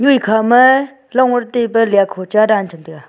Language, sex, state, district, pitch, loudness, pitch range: Wancho, female, Arunachal Pradesh, Longding, 225 Hz, -13 LUFS, 200-255 Hz